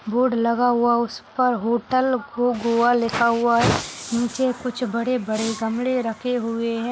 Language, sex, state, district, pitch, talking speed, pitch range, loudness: Hindi, female, Goa, North and South Goa, 235 Hz, 165 wpm, 230-250 Hz, -21 LUFS